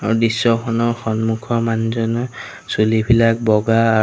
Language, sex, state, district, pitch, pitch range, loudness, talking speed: Assamese, male, Assam, Sonitpur, 115 Hz, 110-115 Hz, -17 LUFS, 105 wpm